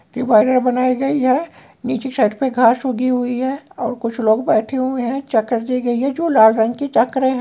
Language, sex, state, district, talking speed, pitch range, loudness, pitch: Hindi, male, West Bengal, Purulia, 220 wpm, 230-265 Hz, -17 LUFS, 250 Hz